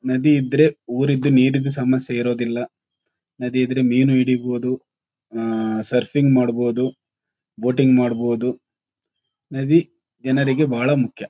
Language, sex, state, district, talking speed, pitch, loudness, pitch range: Kannada, male, Karnataka, Shimoga, 100 wpm, 130 Hz, -19 LUFS, 120-135 Hz